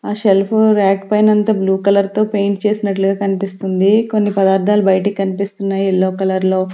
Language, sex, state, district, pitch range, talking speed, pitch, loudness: Telugu, female, Andhra Pradesh, Sri Satya Sai, 195-210 Hz, 150 wpm, 200 Hz, -15 LUFS